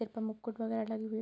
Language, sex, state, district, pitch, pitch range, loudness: Hindi, female, Bihar, Sitamarhi, 220 Hz, 220-225 Hz, -38 LUFS